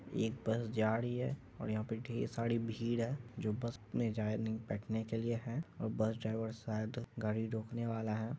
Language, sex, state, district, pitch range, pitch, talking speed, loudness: Hindi, male, Bihar, Madhepura, 110-115 Hz, 115 Hz, 205 wpm, -39 LUFS